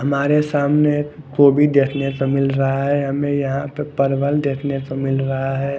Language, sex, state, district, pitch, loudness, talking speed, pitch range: Hindi, male, Odisha, Khordha, 140 Hz, -18 LUFS, 185 wpm, 135-145 Hz